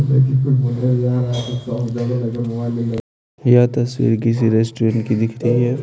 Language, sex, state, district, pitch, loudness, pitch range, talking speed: Hindi, male, Bihar, Patna, 120 Hz, -18 LUFS, 115-125 Hz, 90 wpm